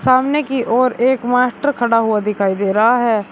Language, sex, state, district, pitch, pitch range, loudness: Hindi, male, Uttar Pradesh, Shamli, 240 Hz, 215-255 Hz, -15 LUFS